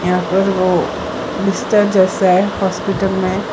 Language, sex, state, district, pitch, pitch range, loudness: Hindi, female, Gujarat, Valsad, 190 Hz, 185-195 Hz, -15 LUFS